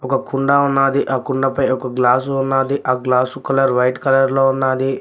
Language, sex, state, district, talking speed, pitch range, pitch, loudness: Telugu, male, Telangana, Mahabubabad, 180 wpm, 130-135 Hz, 135 Hz, -16 LUFS